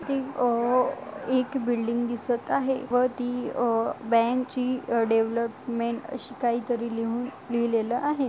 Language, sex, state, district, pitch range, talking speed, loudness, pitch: Marathi, female, Maharashtra, Dhule, 235-255 Hz, 130 wpm, -27 LUFS, 245 Hz